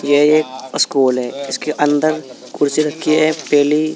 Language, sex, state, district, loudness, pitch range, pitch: Hindi, male, Uttar Pradesh, Saharanpur, -16 LUFS, 135-155 Hz, 145 Hz